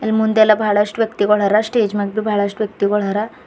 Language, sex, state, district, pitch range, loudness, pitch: Kannada, female, Karnataka, Bidar, 205-220 Hz, -16 LUFS, 210 Hz